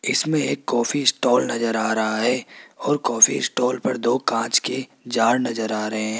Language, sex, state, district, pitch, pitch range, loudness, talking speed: Hindi, male, Rajasthan, Jaipur, 115 Hz, 110-130 Hz, -21 LUFS, 195 wpm